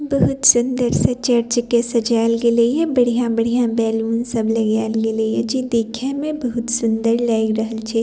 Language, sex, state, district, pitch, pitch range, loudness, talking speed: Maithili, female, Bihar, Purnia, 235 Hz, 225-245 Hz, -18 LUFS, 165 wpm